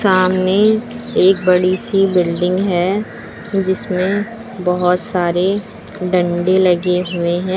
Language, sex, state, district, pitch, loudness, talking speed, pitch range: Hindi, female, Uttar Pradesh, Lucknow, 185 Hz, -16 LUFS, 105 wpm, 180-195 Hz